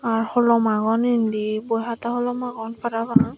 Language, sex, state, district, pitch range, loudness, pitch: Chakma, female, Tripura, Dhalai, 225-240 Hz, -22 LUFS, 230 Hz